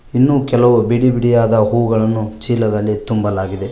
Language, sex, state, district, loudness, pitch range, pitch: Kannada, male, Karnataka, Koppal, -15 LUFS, 105-120 Hz, 115 Hz